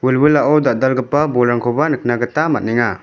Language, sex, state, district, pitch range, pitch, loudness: Garo, male, Meghalaya, West Garo Hills, 120-150 Hz, 130 Hz, -15 LUFS